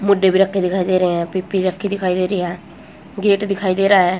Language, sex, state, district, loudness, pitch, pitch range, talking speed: Hindi, female, Haryana, Jhajjar, -17 LUFS, 185 Hz, 185-200 Hz, 255 wpm